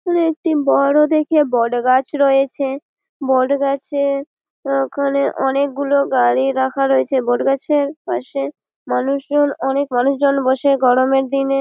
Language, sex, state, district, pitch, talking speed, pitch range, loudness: Bengali, female, West Bengal, Malda, 275 Hz, 125 wpm, 265-285 Hz, -17 LUFS